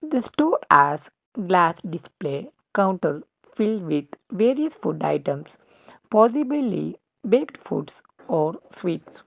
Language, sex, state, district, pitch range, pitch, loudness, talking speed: English, male, Karnataka, Bangalore, 165-250 Hz, 200 Hz, -23 LUFS, 95 wpm